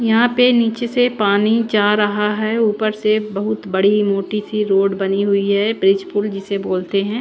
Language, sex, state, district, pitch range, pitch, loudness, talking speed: Hindi, female, Chandigarh, Chandigarh, 200-220 Hz, 210 Hz, -17 LUFS, 190 wpm